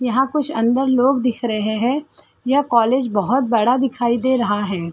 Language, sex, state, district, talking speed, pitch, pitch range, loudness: Hindi, female, Uttar Pradesh, Varanasi, 185 wpm, 245 Hz, 225-265 Hz, -18 LUFS